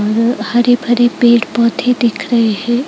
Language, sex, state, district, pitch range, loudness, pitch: Hindi, female, Chhattisgarh, Raipur, 230-240 Hz, -13 LUFS, 240 Hz